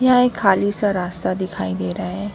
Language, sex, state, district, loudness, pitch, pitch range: Hindi, female, West Bengal, Alipurduar, -20 LUFS, 195 Hz, 180-205 Hz